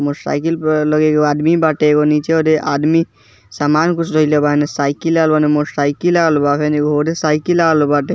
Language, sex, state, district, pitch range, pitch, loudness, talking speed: Bhojpuri, male, Bihar, East Champaran, 145-160 Hz, 150 Hz, -14 LUFS, 215 wpm